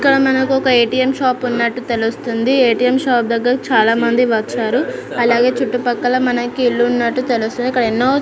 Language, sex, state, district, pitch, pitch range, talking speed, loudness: Telugu, female, Andhra Pradesh, Anantapur, 245 Hz, 235-255 Hz, 170 wpm, -15 LUFS